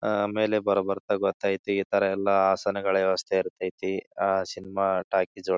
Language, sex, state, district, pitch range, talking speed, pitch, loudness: Kannada, male, Karnataka, Bijapur, 95-100 Hz, 170 wpm, 95 Hz, -26 LUFS